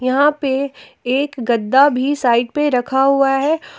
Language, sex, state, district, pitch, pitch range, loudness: Hindi, female, Jharkhand, Palamu, 270 Hz, 255-285 Hz, -16 LUFS